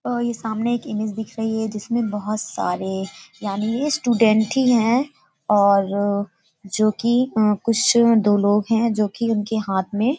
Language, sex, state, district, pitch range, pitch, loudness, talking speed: Hindi, female, Uttar Pradesh, Hamirpur, 205-235 Hz, 220 Hz, -20 LUFS, 170 wpm